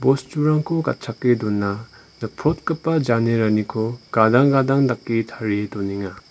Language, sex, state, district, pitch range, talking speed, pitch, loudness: Garo, male, Meghalaya, West Garo Hills, 105-135 Hz, 95 wpm, 115 Hz, -20 LUFS